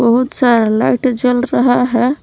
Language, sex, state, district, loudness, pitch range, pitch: Hindi, female, Jharkhand, Palamu, -13 LUFS, 240-250 Hz, 245 Hz